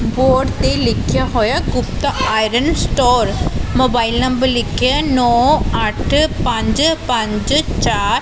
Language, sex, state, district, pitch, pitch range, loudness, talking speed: Punjabi, female, Punjab, Pathankot, 250 Hz, 240-265 Hz, -15 LUFS, 110 wpm